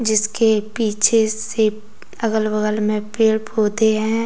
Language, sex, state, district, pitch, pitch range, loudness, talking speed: Hindi, female, Jharkhand, Deoghar, 220 Hz, 215-220 Hz, -18 LUFS, 125 wpm